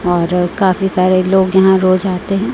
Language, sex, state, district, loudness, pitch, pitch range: Hindi, female, Chhattisgarh, Raipur, -13 LUFS, 185 Hz, 185-190 Hz